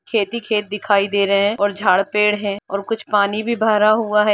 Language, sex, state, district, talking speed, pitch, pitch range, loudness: Hindi, female, Jharkhand, Jamtara, 250 wpm, 210 Hz, 200-215 Hz, -18 LUFS